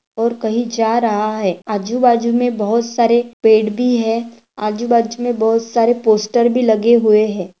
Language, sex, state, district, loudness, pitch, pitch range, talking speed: Hindi, female, Maharashtra, Pune, -15 LUFS, 230 Hz, 215-235 Hz, 165 wpm